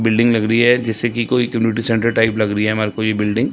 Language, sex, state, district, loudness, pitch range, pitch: Hindi, male, Chandigarh, Chandigarh, -16 LUFS, 110-115 Hz, 115 Hz